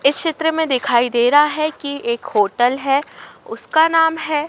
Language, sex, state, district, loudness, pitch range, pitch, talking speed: Hindi, female, Madhya Pradesh, Dhar, -17 LUFS, 245-315 Hz, 285 Hz, 185 wpm